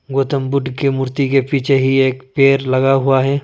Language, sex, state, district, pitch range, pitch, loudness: Hindi, male, Arunachal Pradesh, Lower Dibang Valley, 130-140 Hz, 135 Hz, -15 LUFS